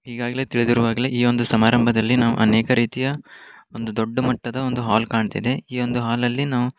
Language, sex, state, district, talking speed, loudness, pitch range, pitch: Kannada, male, Karnataka, Dharwad, 175 wpm, -20 LUFS, 115-125 Hz, 120 Hz